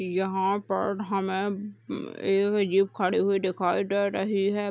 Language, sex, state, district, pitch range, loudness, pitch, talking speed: Hindi, female, Uttar Pradesh, Deoria, 190-200 Hz, -27 LUFS, 195 Hz, 140 wpm